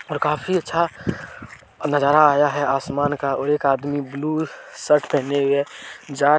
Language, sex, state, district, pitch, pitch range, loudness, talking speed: Hindi, male, Jharkhand, Deoghar, 145 Hz, 140-150 Hz, -21 LUFS, 150 wpm